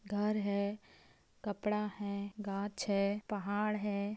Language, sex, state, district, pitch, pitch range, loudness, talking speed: Hindi, female, Jharkhand, Sahebganj, 205 Hz, 200-210 Hz, -37 LUFS, 115 wpm